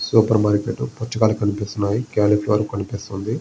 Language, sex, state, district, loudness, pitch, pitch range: Telugu, male, Andhra Pradesh, Visakhapatnam, -20 LUFS, 105 Hz, 100-110 Hz